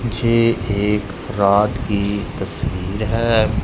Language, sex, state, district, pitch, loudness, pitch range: Hindi, male, Punjab, Kapurthala, 105 Hz, -19 LUFS, 100-115 Hz